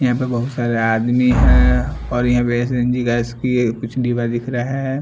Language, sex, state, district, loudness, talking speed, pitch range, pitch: Hindi, male, Bihar, Patna, -18 LUFS, 215 wpm, 120-125 Hz, 120 Hz